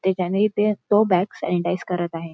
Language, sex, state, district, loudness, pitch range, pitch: Marathi, female, Maharashtra, Nagpur, -21 LUFS, 175-205 Hz, 185 Hz